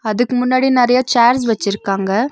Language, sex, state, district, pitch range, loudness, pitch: Tamil, female, Tamil Nadu, Nilgiris, 210-250 Hz, -15 LUFS, 240 Hz